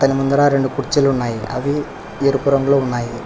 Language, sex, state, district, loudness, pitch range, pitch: Telugu, male, Telangana, Hyderabad, -17 LUFS, 125-140 Hz, 135 Hz